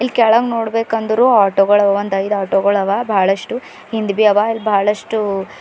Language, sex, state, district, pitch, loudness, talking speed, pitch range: Kannada, female, Karnataka, Bidar, 210 Hz, -15 LUFS, 150 wpm, 200-225 Hz